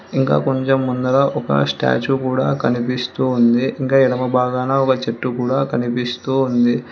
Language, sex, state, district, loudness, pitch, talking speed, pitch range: Telugu, female, Telangana, Hyderabad, -18 LUFS, 125 Hz, 140 wpm, 120-135 Hz